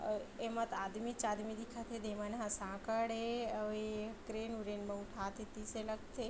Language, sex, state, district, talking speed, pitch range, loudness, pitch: Chhattisgarhi, female, Chhattisgarh, Bilaspur, 200 wpm, 210-230 Hz, -42 LUFS, 220 Hz